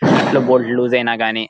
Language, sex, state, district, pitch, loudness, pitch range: Telugu, male, Andhra Pradesh, Guntur, 125 Hz, -15 LUFS, 115-125 Hz